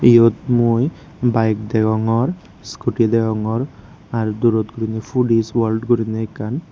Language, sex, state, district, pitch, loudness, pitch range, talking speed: Chakma, male, Tripura, Unakoti, 115 Hz, -18 LUFS, 110-120 Hz, 115 wpm